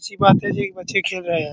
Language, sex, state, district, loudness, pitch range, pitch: Hindi, male, Bihar, Araria, -19 LUFS, 160-195 Hz, 185 Hz